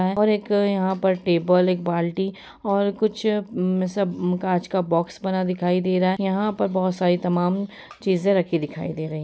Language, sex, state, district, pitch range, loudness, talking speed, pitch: Hindi, female, Bihar, Gopalganj, 180-200 Hz, -22 LUFS, 195 wpm, 185 Hz